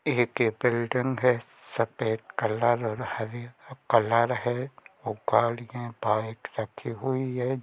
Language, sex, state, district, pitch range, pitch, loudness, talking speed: Hindi, male, Jharkhand, Jamtara, 115-130 Hz, 120 Hz, -28 LUFS, 125 wpm